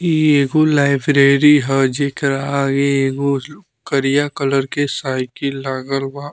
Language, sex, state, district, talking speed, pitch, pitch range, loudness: Bhojpuri, male, Bihar, Muzaffarpur, 125 wpm, 140 Hz, 135-145 Hz, -16 LUFS